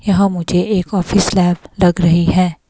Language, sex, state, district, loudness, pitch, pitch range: Hindi, female, Himachal Pradesh, Shimla, -14 LUFS, 180 Hz, 175-195 Hz